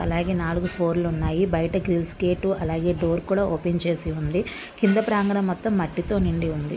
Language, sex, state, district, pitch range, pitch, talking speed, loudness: Telugu, female, Andhra Pradesh, Visakhapatnam, 170-195 Hz, 175 Hz, 185 wpm, -24 LUFS